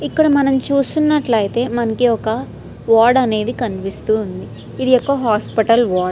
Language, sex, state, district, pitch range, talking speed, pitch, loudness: Telugu, female, Andhra Pradesh, Srikakulam, 220-270 Hz, 135 wpm, 235 Hz, -16 LUFS